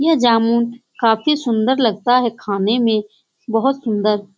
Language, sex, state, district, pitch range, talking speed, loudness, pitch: Hindi, female, Bihar, Saran, 215-245 Hz, 150 wpm, -17 LUFS, 230 Hz